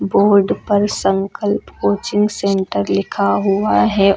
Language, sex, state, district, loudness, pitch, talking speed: Hindi, female, Uttar Pradesh, Lucknow, -16 LUFS, 195 Hz, 115 wpm